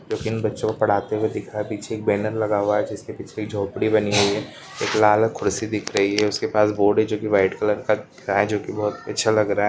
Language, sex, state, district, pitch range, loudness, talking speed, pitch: Hindi, male, Goa, North and South Goa, 100-110 Hz, -22 LUFS, 255 wpm, 105 Hz